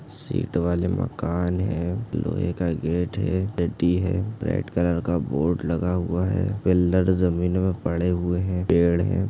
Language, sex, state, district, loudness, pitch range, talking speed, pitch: Hindi, male, Chhattisgarh, Bastar, -24 LUFS, 85-95 Hz, 160 wpm, 90 Hz